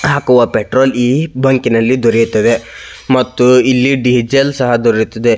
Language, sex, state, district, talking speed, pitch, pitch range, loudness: Kannada, male, Karnataka, Belgaum, 110 wpm, 125 Hz, 120-130 Hz, -12 LUFS